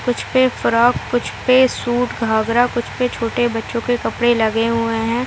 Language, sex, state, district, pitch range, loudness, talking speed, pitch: Hindi, female, Bihar, Gaya, 230-245 Hz, -17 LUFS, 205 wpm, 240 Hz